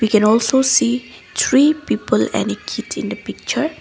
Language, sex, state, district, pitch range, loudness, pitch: English, female, Assam, Kamrup Metropolitan, 210-265 Hz, -17 LUFS, 235 Hz